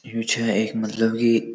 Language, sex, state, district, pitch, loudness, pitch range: Garhwali, male, Uttarakhand, Uttarkashi, 115 Hz, -22 LUFS, 110-115 Hz